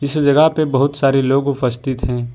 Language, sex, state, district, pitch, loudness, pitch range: Hindi, male, Jharkhand, Ranchi, 135 Hz, -16 LUFS, 130-140 Hz